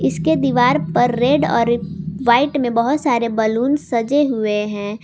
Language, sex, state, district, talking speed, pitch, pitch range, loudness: Hindi, female, Jharkhand, Garhwa, 155 wpm, 235 Hz, 210-260 Hz, -17 LUFS